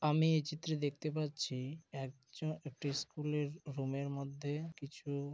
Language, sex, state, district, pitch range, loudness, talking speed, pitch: Bengali, male, West Bengal, Malda, 140-155 Hz, -40 LUFS, 145 wpm, 145 Hz